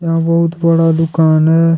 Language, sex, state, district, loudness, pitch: Hindi, male, Jharkhand, Deoghar, -12 LUFS, 165 Hz